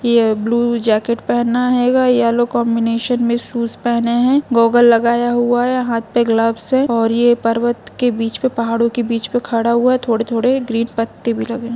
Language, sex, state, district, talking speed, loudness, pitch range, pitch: Hindi, female, Jharkhand, Jamtara, 190 wpm, -15 LUFS, 230-245 Hz, 235 Hz